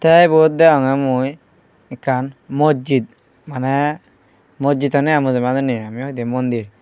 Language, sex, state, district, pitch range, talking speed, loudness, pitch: Chakma, male, Tripura, Unakoti, 125-150 Hz, 125 wpm, -17 LUFS, 135 Hz